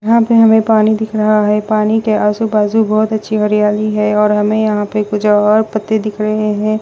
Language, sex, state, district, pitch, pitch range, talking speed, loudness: Hindi, female, Bihar, West Champaran, 215 Hz, 210-220 Hz, 210 wpm, -13 LUFS